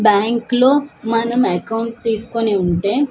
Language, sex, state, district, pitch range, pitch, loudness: Telugu, female, Andhra Pradesh, Manyam, 210-235 Hz, 230 Hz, -17 LUFS